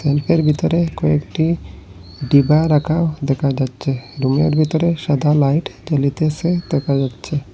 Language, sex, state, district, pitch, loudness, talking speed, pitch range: Bengali, male, Assam, Hailakandi, 145 Hz, -17 LUFS, 110 wpm, 135-160 Hz